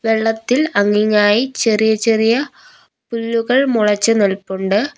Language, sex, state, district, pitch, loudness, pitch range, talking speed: Malayalam, female, Kerala, Kollam, 225 Hz, -15 LUFS, 210-245 Hz, 85 wpm